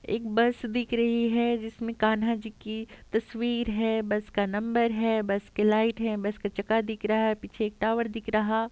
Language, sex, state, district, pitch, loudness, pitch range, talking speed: Hindi, female, Uttar Pradesh, Etah, 220 Hz, -28 LUFS, 215-230 Hz, 215 wpm